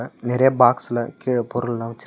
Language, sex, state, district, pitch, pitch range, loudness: Tamil, male, Tamil Nadu, Namakkal, 120 Hz, 120-125 Hz, -20 LUFS